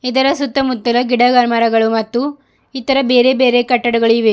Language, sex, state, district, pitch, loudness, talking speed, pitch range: Kannada, female, Karnataka, Bidar, 245 Hz, -14 LUFS, 140 wpm, 235-265 Hz